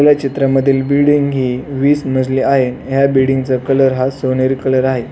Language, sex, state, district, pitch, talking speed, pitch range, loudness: Marathi, male, Maharashtra, Pune, 135 Hz, 175 wpm, 130-140 Hz, -14 LUFS